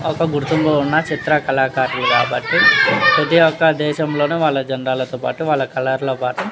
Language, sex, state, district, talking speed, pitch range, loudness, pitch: Telugu, male, Telangana, Nalgonda, 195 wpm, 130-160 Hz, -16 LUFS, 150 Hz